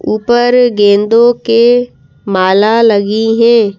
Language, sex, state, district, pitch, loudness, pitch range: Hindi, female, Madhya Pradesh, Bhopal, 225 Hz, -9 LUFS, 205-240 Hz